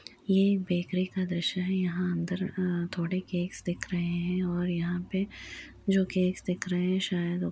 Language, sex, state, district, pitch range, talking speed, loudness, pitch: Hindi, female, Uttar Pradesh, Budaun, 175-185 Hz, 185 wpm, -30 LUFS, 180 Hz